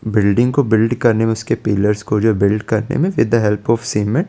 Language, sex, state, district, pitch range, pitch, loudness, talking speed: Hindi, male, Chandigarh, Chandigarh, 105-120 Hz, 110 Hz, -16 LUFS, 265 wpm